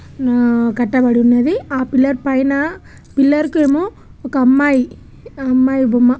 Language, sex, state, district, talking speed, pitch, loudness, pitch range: Telugu, female, Telangana, Nalgonda, 135 wpm, 265 Hz, -15 LUFS, 250-280 Hz